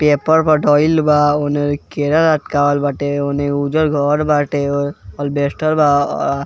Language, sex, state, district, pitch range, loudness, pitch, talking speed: Bhojpuri, male, Bihar, East Champaran, 145-150 Hz, -15 LUFS, 145 Hz, 130 wpm